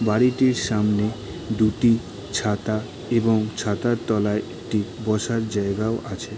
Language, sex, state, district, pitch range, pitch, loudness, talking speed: Bengali, male, West Bengal, Jalpaiguri, 105-115 Hz, 110 Hz, -23 LUFS, 105 wpm